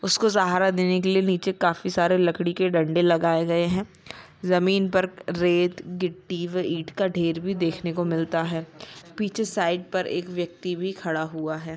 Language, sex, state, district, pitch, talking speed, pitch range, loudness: Hindi, female, Jharkhand, Jamtara, 180 Hz, 180 wpm, 170-185 Hz, -24 LUFS